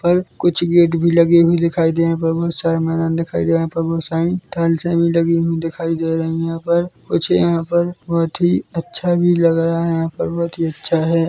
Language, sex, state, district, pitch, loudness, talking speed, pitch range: Hindi, male, Chhattisgarh, Korba, 165 Hz, -17 LUFS, 260 wpm, 165-170 Hz